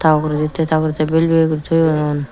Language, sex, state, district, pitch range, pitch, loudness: Chakma, female, Tripura, Dhalai, 150-160 Hz, 155 Hz, -16 LUFS